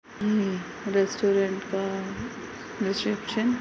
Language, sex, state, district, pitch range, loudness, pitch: Hindi, female, Uttar Pradesh, Etah, 195-215 Hz, -27 LUFS, 200 Hz